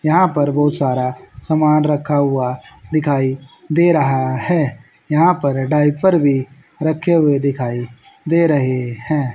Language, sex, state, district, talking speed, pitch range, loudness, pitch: Hindi, male, Haryana, Charkhi Dadri, 135 wpm, 130-155 Hz, -17 LUFS, 145 Hz